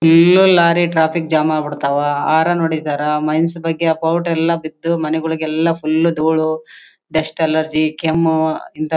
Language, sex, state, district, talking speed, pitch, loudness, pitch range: Kannada, female, Karnataka, Bellary, 145 wpm, 160 Hz, -16 LUFS, 155-165 Hz